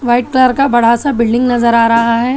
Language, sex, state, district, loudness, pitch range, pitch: Hindi, female, Telangana, Hyderabad, -11 LUFS, 230-255 Hz, 240 Hz